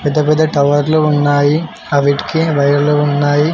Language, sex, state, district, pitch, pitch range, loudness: Telugu, male, Telangana, Mahabubabad, 145 Hz, 145-155 Hz, -13 LUFS